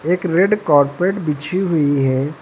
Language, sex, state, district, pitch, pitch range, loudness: Hindi, male, Uttar Pradesh, Lucknow, 160 Hz, 145-185 Hz, -17 LUFS